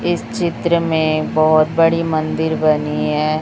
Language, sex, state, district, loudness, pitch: Hindi, male, Chhattisgarh, Raipur, -16 LUFS, 155 Hz